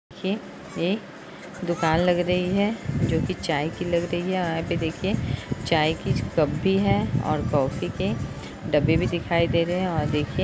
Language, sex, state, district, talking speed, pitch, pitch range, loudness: Hindi, female, Uttar Pradesh, Budaun, 185 wpm, 175 Hz, 160-185 Hz, -25 LUFS